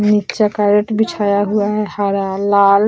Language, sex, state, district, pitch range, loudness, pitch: Hindi, female, Bihar, Vaishali, 200-210 Hz, -15 LUFS, 205 Hz